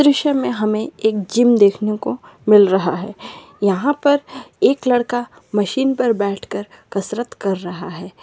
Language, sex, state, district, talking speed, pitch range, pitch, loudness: Magahi, female, Bihar, Samastipur, 170 wpm, 200-245 Hz, 215 Hz, -18 LUFS